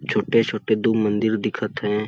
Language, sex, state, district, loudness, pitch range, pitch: Awadhi, male, Chhattisgarh, Balrampur, -21 LUFS, 105-110 Hz, 110 Hz